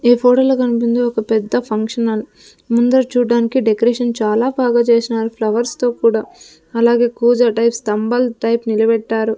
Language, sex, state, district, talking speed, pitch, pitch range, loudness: Telugu, female, Andhra Pradesh, Sri Satya Sai, 140 wpm, 235 Hz, 225-245 Hz, -15 LUFS